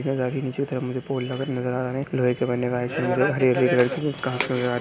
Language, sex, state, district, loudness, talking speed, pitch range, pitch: Hindi, male, Maharashtra, Pune, -24 LUFS, 250 wpm, 125-135 Hz, 130 Hz